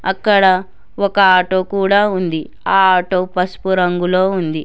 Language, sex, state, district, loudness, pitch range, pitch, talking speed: Telugu, female, Telangana, Hyderabad, -15 LUFS, 180-195 Hz, 185 Hz, 130 wpm